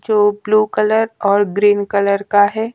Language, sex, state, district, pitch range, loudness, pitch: Hindi, female, Madhya Pradesh, Dhar, 205-215 Hz, -15 LUFS, 205 Hz